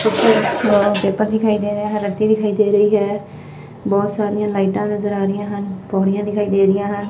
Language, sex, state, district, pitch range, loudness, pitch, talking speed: Punjabi, female, Punjab, Fazilka, 200-210 Hz, -17 LUFS, 205 Hz, 185 wpm